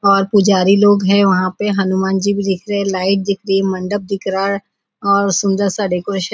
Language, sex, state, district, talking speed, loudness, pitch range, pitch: Hindi, female, Maharashtra, Nagpur, 235 wpm, -15 LUFS, 190-200 Hz, 195 Hz